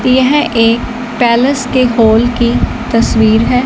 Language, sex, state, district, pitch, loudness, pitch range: Hindi, male, Punjab, Fazilka, 240 Hz, -11 LUFS, 230-255 Hz